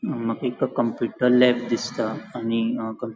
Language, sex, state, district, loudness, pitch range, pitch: Konkani, male, Goa, North and South Goa, -23 LUFS, 115-125 Hz, 120 Hz